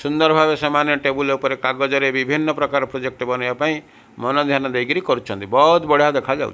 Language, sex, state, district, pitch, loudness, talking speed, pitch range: Odia, male, Odisha, Malkangiri, 140 Hz, -18 LUFS, 185 wpm, 130-150 Hz